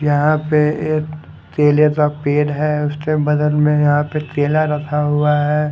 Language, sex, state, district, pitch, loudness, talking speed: Hindi, male, Haryana, Charkhi Dadri, 150 Hz, -16 LUFS, 170 wpm